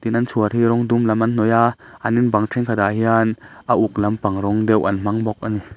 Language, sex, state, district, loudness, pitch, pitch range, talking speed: Mizo, male, Mizoram, Aizawl, -18 LUFS, 110 Hz, 105-115 Hz, 260 wpm